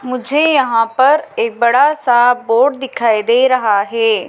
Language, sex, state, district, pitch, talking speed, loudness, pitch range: Hindi, female, Madhya Pradesh, Dhar, 245 Hz, 155 wpm, -13 LUFS, 230-265 Hz